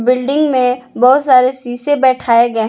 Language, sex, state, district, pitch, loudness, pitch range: Hindi, female, Jharkhand, Palamu, 255 Hz, -12 LUFS, 245-265 Hz